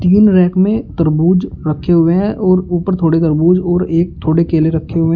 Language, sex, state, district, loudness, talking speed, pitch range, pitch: Hindi, male, Uttar Pradesh, Shamli, -13 LUFS, 195 wpm, 165-185 Hz, 175 Hz